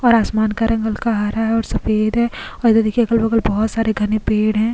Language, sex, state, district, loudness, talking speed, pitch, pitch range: Hindi, female, Goa, North and South Goa, -17 LUFS, 240 wpm, 225 Hz, 215-230 Hz